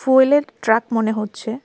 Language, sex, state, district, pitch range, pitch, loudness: Bengali, female, Tripura, West Tripura, 220-265 Hz, 225 Hz, -18 LUFS